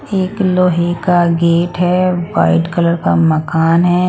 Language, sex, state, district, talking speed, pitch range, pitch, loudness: Hindi, female, Punjab, Pathankot, 145 wpm, 165-180 Hz, 175 Hz, -13 LUFS